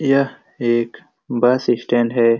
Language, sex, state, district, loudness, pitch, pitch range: Hindi, male, Bihar, Supaul, -18 LUFS, 120 Hz, 120-130 Hz